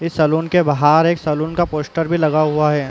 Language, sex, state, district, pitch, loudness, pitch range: Hindi, male, Uttar Pradesh, Muzaffarnagar, 155 Hz, -16 LUFS, 150-165 Hz